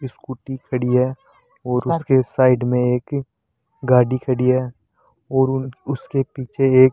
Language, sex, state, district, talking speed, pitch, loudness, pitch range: Hindi, male, Rajasthan, Jaipur, 145 wpm, 130 Hz, -19 LUFS, 125-135 Hz